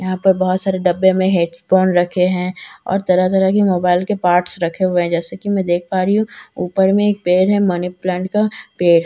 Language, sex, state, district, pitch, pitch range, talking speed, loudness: Hindi, female, Bihar, Katihar, 185 Hz, 180-190 Hz, 225 wpm, -16 LUFS